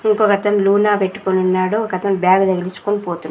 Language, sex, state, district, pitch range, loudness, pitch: Telugu, female, Andhra Pradesh, Sri Satya Sai, 185-205 Hz, -16 LUFS, 195 Hz